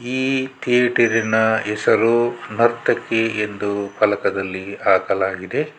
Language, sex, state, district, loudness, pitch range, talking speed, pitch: Kannada, male, Karnataka, Bangalore, -19 LUFS, 105-120 Hz, 75 wpm, 115 Hz